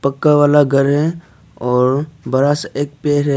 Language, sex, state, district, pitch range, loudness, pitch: Hindi, male, Arunachal Pradesh, Papum Pare, 140-150 Hz, -15 LUFS, 145 Hz